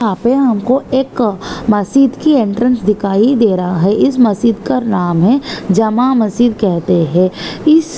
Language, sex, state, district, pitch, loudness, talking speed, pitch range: Hindi, female, Maharashtra, Nagpur, 225 Hz, -13 LUFS, 160 wpm, 200-255 Hz